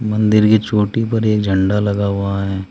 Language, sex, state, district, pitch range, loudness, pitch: Hindi, male, Uttar Pradesh, Saharanpur, 100-110 Hz, -16 LUFS, 105 Hz